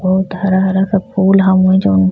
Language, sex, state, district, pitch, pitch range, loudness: Bhojpuri, female, Bihar, East Champaran, 190 Hz, 185-190 Hz, -12 LUFS